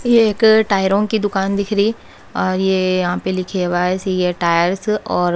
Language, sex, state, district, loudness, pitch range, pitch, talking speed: Hindi, female, Haryana, Charkhi Dadri, -17 LUFS, 180-210 Hz, 190 Hz, 170 wpm